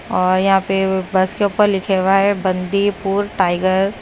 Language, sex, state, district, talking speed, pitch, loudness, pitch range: Hindi, female, Punjab, Kapurthala, 165 wpm, 195 Hz, -17 LUFS, 185-200 Hz